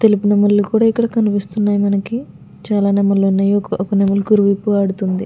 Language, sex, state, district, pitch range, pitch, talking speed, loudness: Telugu, female, Andhra Pradesh, Guntur, 200-210 Hz, 205 Hz, 150 wpm, -15 LUFS